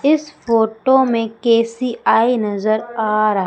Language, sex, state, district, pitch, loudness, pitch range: Hindi, female, Madhya Pradesh, Umaria, 230 Hz, -17 LUFS, 215-245 Hz